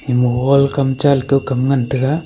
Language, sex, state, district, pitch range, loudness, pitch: Wancho, male, Arunachal Pradesh, Longding, 130-140 Hz, -15 LUFS, 135 Hz